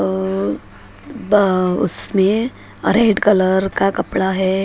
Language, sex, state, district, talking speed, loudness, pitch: Hindi, female, Maharashtra, Mumbai Suburban, 115 wpm, -17 LUFS, 190 Hz